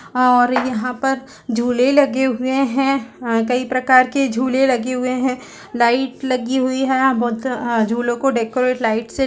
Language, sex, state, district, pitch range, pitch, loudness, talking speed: Hindi, female, Chhattisgarh, Raigarh, 240-265 Hz, 255 Hz, -18 LUFS, 160 wpm